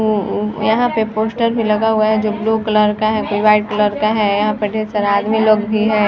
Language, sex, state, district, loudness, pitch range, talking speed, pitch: Hindi, female, Chhattisgarh, Sarguja, -16 LUFS, 210-220 Hz, 235 wpm, 215 Hz